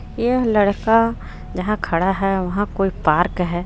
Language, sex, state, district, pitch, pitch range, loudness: Hindi, female, Jharkhand, Garhwa, 195 Hz, 180-215 Hz, -19 LUFS